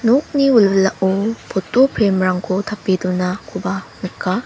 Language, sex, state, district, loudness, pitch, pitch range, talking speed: Garo, female, Meghalaya, South Garo Hills, -17 LUFS, 195 Hz, 185-230 Hz, 105 wpm